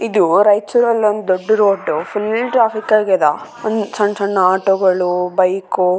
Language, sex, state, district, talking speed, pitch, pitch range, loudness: Kannada, female, Karnataka, Raichur, 150 wpm, 205 Hz, 185-220 Hz, -15 LUFS